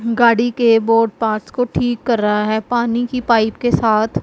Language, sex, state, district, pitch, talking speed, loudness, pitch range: Hindi, female, Punjab, Pathankot, 230 Hz, 200 wpm, -16 LUFS, 220-240 Hz